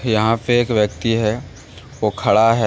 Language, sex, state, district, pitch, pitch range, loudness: Hindi, male, Jharkhand, Deoghar, 110 Hz, 105-120 Hz, -18 LUFS